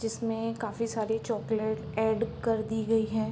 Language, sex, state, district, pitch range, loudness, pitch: Hindi, female, Bihar, Sitamarhi, 220-225 Hz, -30 LUFS, 225 Hz